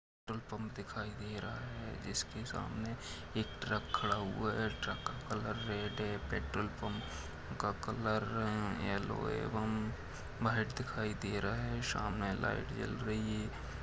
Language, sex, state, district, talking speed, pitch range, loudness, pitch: Hindi, male, Bihar, Araria, 150 wpm, 100-110 Hz, -39 LUFS, 105 Hz